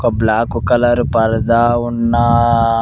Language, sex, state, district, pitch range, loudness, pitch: Telugu, male, Telangana, Mahabubabad, 115-120 Hz, -14 LUFS, 120 Hz